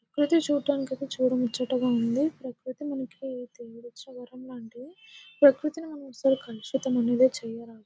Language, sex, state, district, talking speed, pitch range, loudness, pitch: Telugu, female, Telangana, Nalgonda, 120 wpm, 240-275 Hz, -27 LUFS, 255 Hz